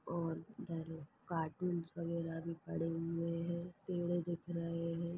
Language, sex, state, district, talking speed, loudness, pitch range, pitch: Hindi, female, Chhattisgarh, Bastar, 140 wpm, -41 LUFS, 165-170 Hz, 170 Hz